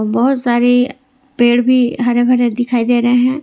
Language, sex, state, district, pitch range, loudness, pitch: Hindi, female, Jharkhand, Ranchi, 240-255 Hz, -13 LUFS, 245 Hz